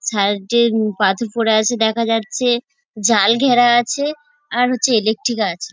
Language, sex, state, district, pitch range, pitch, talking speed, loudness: Bengali, female, West Bengal, Dakshin Dinajpur, 220-245 Hz, 235 Hz, 145 wpm, -16 LUFS